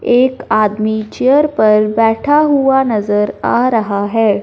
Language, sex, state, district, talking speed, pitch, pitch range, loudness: Hindi, male, Punjab, Fazilka, 135 wpm, 225 Hz, 215-260 Hz, -13 LUFS